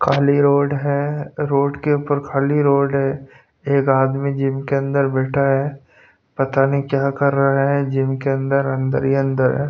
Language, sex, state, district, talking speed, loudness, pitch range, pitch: Hindi, male, Punjab, Pathankot, 180 wpm, -18 LUFS, 135-140 Hz, 140 Hz